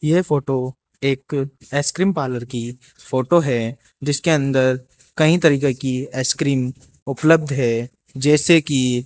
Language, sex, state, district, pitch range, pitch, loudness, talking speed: Hindi, male, Rajasthan, Jaipur, 130-150 Hz, 135 Hz, -19 LUFS, 125 wpm